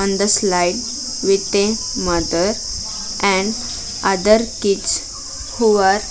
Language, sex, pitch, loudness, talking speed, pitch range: English, female, 200 Hz, -18 LUFS, 120 wpm, 195-220 Hz